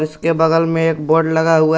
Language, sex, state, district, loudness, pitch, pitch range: Hindi, male, Jharkhand, Garhwa, -15 LUFS, 160 Hz, 160-165 Hz